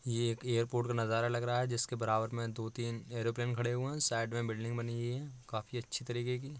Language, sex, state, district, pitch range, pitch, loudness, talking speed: Hindi, male, Uttar Pradesh, Etah, 115-125 Hz, 120 Hz, -36 LUFS, 235 wpm